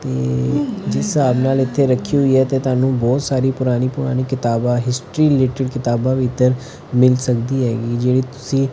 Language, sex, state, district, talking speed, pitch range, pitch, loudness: Punjabi, male, Punjab, Fazilka, 165 wpm, 125-130 Hz, 130 Hz, -17 LUFS